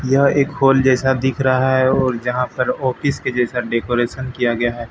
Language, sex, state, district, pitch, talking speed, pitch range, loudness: Hindi, male, Bihar, Katihar, 130 Hz, 205 wpm, 125-130 Hz, -17 LUFS